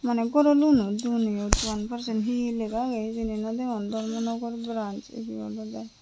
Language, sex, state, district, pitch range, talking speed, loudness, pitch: Chakma, female, Tripura, Unakoti, 215-235 Hz, 170 wpm, -27 LUFS, 225 Hz